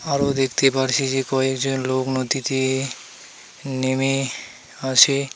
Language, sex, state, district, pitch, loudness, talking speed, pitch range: Bengali, male, West Bengal, Alipurduar, 130 Hz, -21 LUFS, 110 wpm, 130-135 Hz